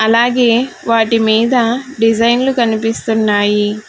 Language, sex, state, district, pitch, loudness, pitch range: Telugu, female, Telangana, Hyderabad, 230 Hz, -13 LUFS, 220-240 Hz